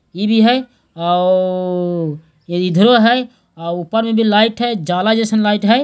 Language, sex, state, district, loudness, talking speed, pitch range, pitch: Hindi, male, Bihar, Jahanabad, -15 LUFS, 145 wpm, 175-225 Hz, 210 Hz